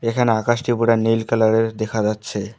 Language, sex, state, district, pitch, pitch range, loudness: Bengali, male, West Bengal, Alipurduar, 115 Hz, 110-115 Hz, -19 LUFS